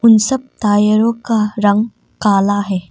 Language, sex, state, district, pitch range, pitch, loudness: Hindi, female, Arunachal Pradesh, Papum Pare, 205-230 Hz, 210 Hz, -15 LUFS